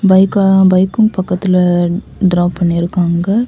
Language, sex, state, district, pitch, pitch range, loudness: Tamil, female, Tamil Nadu, Kanyakumari, 185 Hz, 175-195 Hz, -12 LUFS